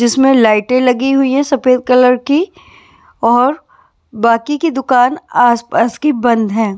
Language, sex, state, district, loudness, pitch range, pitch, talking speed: Hindi, female, Bihar, West Champaran, -12 LUFS, 240-285 Hz, 255 Hz, 140 wpm